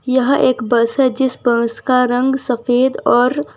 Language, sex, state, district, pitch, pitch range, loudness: Hindi, female, Gujarat, Valsad, 255 Hz, 245-260 Hz, -15 LUFS